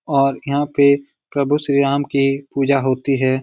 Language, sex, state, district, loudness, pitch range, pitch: Hindi, male, Bihar, Lakhisarai, -18 LUFS, 135-140 Hz, 140 Hz